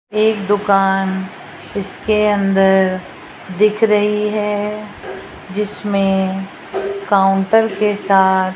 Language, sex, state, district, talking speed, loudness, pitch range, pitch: Hindi, female, Rajasthan, Jaipur, 85 wpm, -16 LUFS, 195-210 Hz, 200 Hz